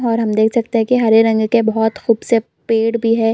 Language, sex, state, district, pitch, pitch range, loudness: Hindi, female, Chhattisgarh, Bilaspur, 225 Hz, 220-230 Hz, -15 LUFS